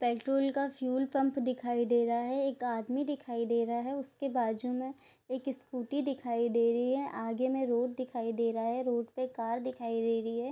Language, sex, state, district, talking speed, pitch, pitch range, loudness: Hindi, female, Bihar, Darbhanga, 210 wpm, 250 Hz, 235-265 Hz, -33 LUFS